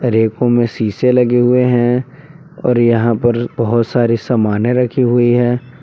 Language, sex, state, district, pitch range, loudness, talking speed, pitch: Hindi, male, Jharkhand, Palamu, 115-125 Hz, -14 LUFS, 145 wpm, 120 Hz